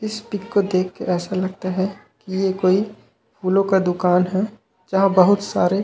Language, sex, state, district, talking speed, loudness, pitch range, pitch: Chhattisgarhi, male, Chhattisgarh, Raigarh, 185 wpm, -20 LUFS, 185-200 Hz, 190 Hz